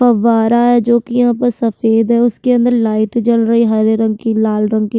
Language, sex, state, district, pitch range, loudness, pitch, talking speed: Hindi, female, Uttarakhand, Tehri Garhwal, 225-240 Hz, -13 LUFS, 230 Hz, 240 wpm